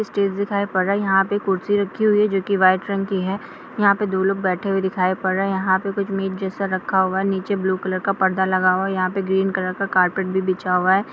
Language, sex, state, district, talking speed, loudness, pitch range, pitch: Hindi, female, Bihar, Kishanganj, 290 wpm, -20 LUFS, 185-200 Hz, 195 Hz